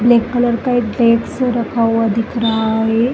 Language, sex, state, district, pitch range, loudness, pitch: Hindi, female, Uttar Pradesh, Jalaun, 225-240 Hz, -15 LUFS, 235 Hz